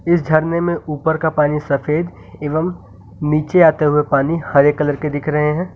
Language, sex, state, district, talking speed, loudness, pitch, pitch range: Hindi, male, Uttar Pradesh, Lucknow, 185 wpm, -16 LUFS, 150 Hz, 150-165 Hz